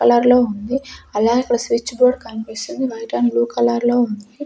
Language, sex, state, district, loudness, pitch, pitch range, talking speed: Telugu, female, Andhra Pradesh, Sri Satya Sai, -18 LUFS, 235 Hz, 220-250 Hz, 190 wpm